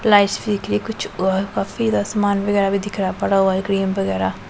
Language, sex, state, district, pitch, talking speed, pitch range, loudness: Hindi, female, Punjab, Pathankot, 200 Hz, 185 wpm, 190-205 Hz, -20 LUFS